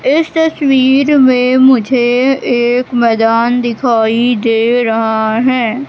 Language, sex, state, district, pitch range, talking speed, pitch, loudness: Hindi, female, Madhya Pradesh, Katni, 230-260 Hz, 100 wpm, 245 Hz, -11 LUFS